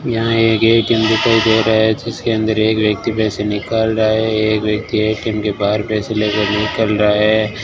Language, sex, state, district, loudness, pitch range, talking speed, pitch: Hindi, male, Rajasthan, Bikaner, -15 LUFS, 105-110 Hz, 195 wpm, 110 Hz